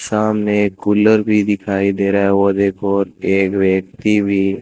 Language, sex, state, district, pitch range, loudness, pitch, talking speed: Hindi, male, Rajasthan, Bikaner, 100-105 Hz, -16 LUFS, 100 Hz, 180 wpm